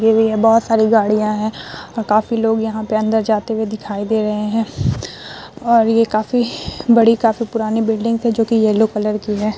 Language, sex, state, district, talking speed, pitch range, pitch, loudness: Hindi, female, Bihar, Vaishali, 220 wpm, 215-225 Hz, 220 Hz, -16 LUFS